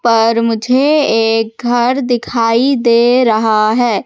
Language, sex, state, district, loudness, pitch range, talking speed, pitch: Hindi, female, Madhya Pradesh, Katni, -12 LUFS, 225-245 Hz, 120 wpm, 235 Hz